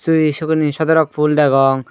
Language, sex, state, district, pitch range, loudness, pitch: Chakma, female, Tripura, Dhalai, 145-160 Hz, -15 LUFS, 150 Hz